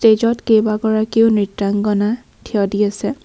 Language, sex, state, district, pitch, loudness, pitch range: Assamese, female, Assam, Kamrup Metropolitan, 215 Hz, -17 LUFS, 205-225 Hz